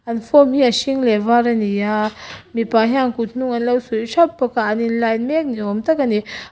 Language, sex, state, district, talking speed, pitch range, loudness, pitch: Mizo, female, Mizoram, Aizawl, 250 wpm, 220-260 Hz, -17 LUFS, 235 Hz